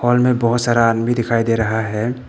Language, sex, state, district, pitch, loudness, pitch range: Hindi, male, Arunachal Pradesh, Papum Pare, 120 Hz, -17 LUFS, 115-120 Hz